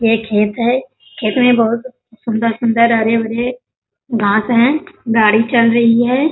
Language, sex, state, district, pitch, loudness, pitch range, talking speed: Hindi, female, Bihar, Bhagalpur, 230 Hz, -14 LUFS, 225-245 Hz, 135 wpm